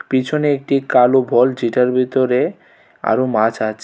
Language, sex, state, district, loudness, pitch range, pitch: Bengali, male, Tripura, West Tripura, -16 LUFS, 120-135 Hz, 130 Hz